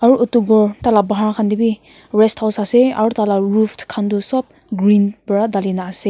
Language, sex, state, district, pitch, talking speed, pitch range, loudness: Nagamese, female, Nagaland, Kohima, 215 Hz, 235 wpm, 205-225 Hz, -15 LUFS